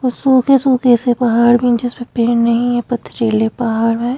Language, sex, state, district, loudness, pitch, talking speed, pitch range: Hindi, female, Goa, North and South Goa, -14 LUFS, 240 Hz, 170 wpm, 235-245 Hz